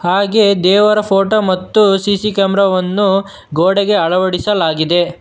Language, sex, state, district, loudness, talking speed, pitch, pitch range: Kannada, male, Karnataka, Bangalore, -13 LUFS, 105 wpm, 195 Hz, 185-205 Hz